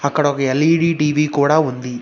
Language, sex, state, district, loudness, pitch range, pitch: Telugu, male, Telangana, Hyderabad, -16 LUFS, 140-155 Hz, 145 Hz